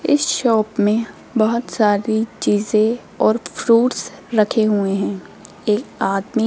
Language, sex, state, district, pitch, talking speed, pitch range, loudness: Hindi, female, Rajasthan, Jaipur, 220 Hz, 130 wpm, 205-230 Hz, -18 LUFS